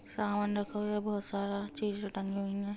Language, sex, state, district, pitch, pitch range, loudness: Hindi, female, Bihar, Sitamarhi, 205 Hz, 200-210 Hz, -35 LUFS